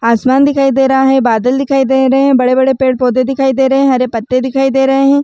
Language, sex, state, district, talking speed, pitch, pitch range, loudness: Chhattisgarhi, female, Chhattisgarh, Raigarh, 265 wpm, 265 Hz, 255-270 Hz, -11 LUFS